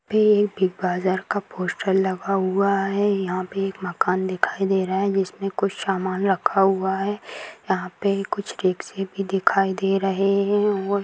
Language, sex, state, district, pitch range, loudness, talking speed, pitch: Hindi, female, Bihar, Vaishali, 190-200 Hz, -22 LUFS, 185 wpm, 195 Hz